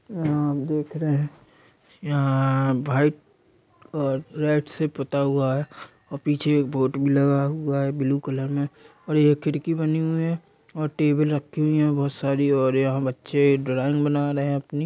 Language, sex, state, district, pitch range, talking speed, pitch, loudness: Hindi, male, Chhattisgarh, Raigarh, 140-150 Hz, 180 wpm, 145 Hz, -23 LUFS